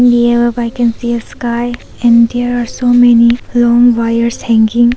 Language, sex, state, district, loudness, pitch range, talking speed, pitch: English, female, Arunachal Pradesh, Papum Pare, -11 LUFS, 235-245 Hz, 180 wpm, 240 Hz